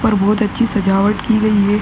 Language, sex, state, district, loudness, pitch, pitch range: Hindi, male, Uttar Pradesh, Ghazipur, -15 LUFS, 210 Hz, 205-220 Hz